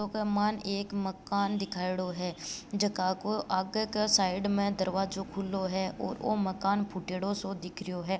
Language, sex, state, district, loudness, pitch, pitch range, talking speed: Marwari, female, Rajasthan, Nagaur, -31 LUFS, 195 Hz, 185-205 Hz, 175 wpm